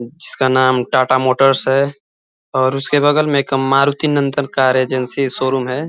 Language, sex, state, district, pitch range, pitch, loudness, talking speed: Hindi, male, Uttar Pradesh, Ghazipur, 130-140 Hz, 135 Hz, -15 LUFS, 165 wpm